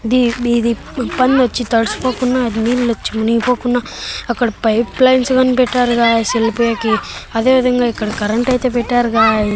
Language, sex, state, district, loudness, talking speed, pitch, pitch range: Telugu, male, Andhra Pradesh, Annamaya, -15 LUFS, 130 wpm, 240 Hz, 230-250 Hz